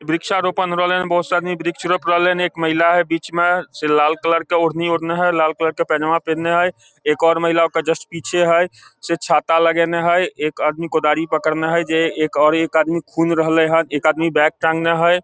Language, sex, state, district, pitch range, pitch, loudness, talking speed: Maithili, male, Bihar, Samastipur, 160-175 Hz, 165 Hz, -17 LUFS, 220 wpm